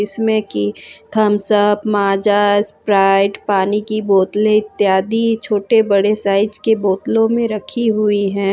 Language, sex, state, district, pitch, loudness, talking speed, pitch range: Hindi, female, Jharkhand, Ranchi, 205 Hz, -15 LUFS, 125 wpm, 200-215 Hz